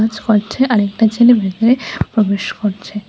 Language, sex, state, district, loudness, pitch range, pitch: Bengali, female, Tripura, West Tripura, -14 LUFS, 205-235 Hz, 215 Hz